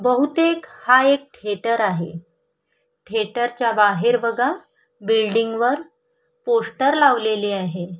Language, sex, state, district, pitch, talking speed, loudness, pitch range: Marathi, female, Maharashtra, Sindhudurg, 240 Hz, 105 wpm, -19 LUFS, 215-290 Hz